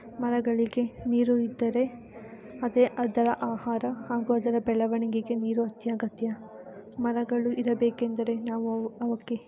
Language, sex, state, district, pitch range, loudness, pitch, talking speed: Kannada, female, Karnataka, Shimoga, 230-240 Hz, -28 LUFS, 235 Hz, 110 wpm